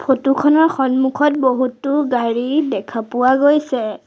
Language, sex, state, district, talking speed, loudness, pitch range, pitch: Assamese, female, Assam, Sonitpur, 120 wpm, -16 LUFS, 250-290 Hz, 265 Hz